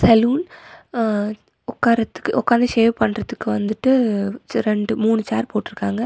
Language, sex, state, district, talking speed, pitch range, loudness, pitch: Tamil, female, Tamil Nadu, Nilgiris, 110 wpm, 210-240 Hz, -20 LUFS, 225 Hz